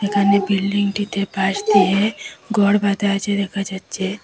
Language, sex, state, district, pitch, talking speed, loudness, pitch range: Bengali, female, Assam, Hailakandi, 200 Hz, 125 wpm, -19 LUFS, 195-205 Hz